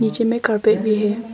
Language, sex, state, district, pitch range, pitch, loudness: Hindi, female, Arunachal Pradesh, Longding, 215-225 Hz, 215 Hz, -18 LUFS